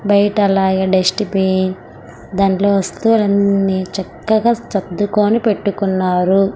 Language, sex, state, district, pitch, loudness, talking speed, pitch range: Telugu, female, Andhra Pradesh, Sri Satya Sai, 200 Hz, -15 LUFS, 80 wpm, 190-205 Hz